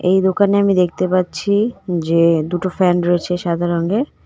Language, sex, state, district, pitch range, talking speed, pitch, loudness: Bengali, female, West Bengal, Cooch Behar, 175-195 Hz, 155 wpm, 180 Hz, -17 LUFS